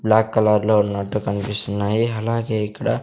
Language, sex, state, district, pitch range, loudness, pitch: Telugu, male, Andhra Pradesh, Sri Satya Sai, 105-110 Hz, -20 LUFS, 110 Hz